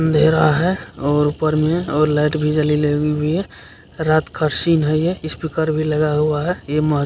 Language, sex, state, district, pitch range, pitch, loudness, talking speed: Hindi, male, Bihar, Kishanganj, 150-160 Hz, 155 Hz, -18 LUFS, 210 wpm